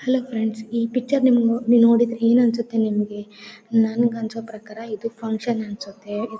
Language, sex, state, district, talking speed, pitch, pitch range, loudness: Kannada, female, Karnataka, Gulbarga, 160 wpm, 225 Hz, 220-235 Hz, -21 LUFS